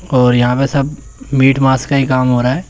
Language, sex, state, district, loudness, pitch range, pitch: Hindi, male, Uttar Pradesh, Shamli, -13 LUFS, 125-140 Hz, 135 Hz